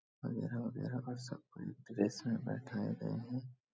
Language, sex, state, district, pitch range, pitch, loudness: Hindi, male, Bihar, Supaul, 115-130 Hz, 125 Hz, -41 LUFS